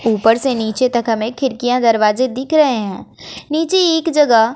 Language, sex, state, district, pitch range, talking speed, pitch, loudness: Hindi, female, Bihar, West Champaran, 225-290 Hz, 170 wpm, 245 Hz, -15 LUFS